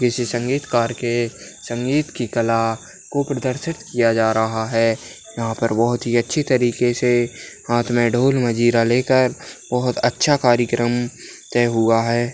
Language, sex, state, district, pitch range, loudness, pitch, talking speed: Hindi, male, Bihar, Darbhanga, 115-125 Hz, -19 LUFS, 120 Hz, 145 wpm